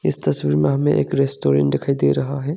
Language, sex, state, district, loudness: Hindi, male, Arunachal Pradesh, Longding, -17 LUFS